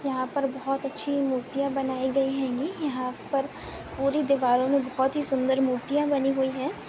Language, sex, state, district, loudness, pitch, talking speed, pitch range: Hindi, female, Maharashtra, Aurangabad, -27 LUFS, 270 Hz, 155 wpm, 260-280 Hz